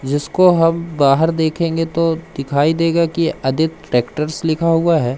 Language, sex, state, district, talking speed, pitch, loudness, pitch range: Hindi, male, Madhya Pradesh, Umaria, 150 wpm, 160 Hz, -16 LUFS, 145-165 Hz